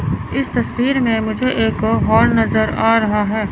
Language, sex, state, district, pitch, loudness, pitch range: Hindi, male, Chandigarh, Chandigarh, 225 Hz, -16 LUFS, 220-245 Hz